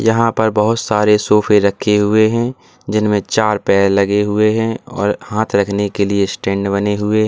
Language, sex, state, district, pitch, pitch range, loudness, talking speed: Hindi, male, Uttar Pradesh, Lalitpur, 105 Hz, 100-110 Hz, -15 LUFS, 190 wpm